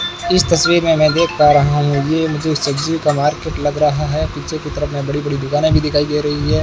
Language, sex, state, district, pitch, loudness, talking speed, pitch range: Hindi, male, Rajasthan, Bikaner, 150 Hz, -16 LUFS, 255 wpm, 145-160 Hz